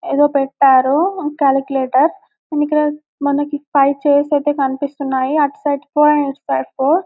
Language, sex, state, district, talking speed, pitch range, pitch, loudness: Telugu, female, Telangana, Karimnagar, 135 wpm, 275-295 Hz, 285 Hz, -16 LUFS